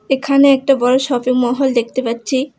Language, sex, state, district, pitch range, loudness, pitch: Bengali, female, West Bengal, Alipurduar, 245-275 Hz, -15 LUFS, 260 Hz